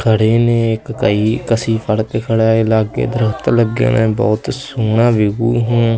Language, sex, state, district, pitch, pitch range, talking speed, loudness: Punjabi, male, Punjab, Kapurthala, 115 Hz, 110-115 Hz, 150 wpm, -15 LUFS